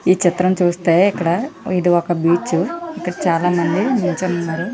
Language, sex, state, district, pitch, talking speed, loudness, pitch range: Telugu, female, Andhra Pradesh, Visakhapatnam, 180 Hz, 140 wpm, -17 LUFS, 170-185 Hz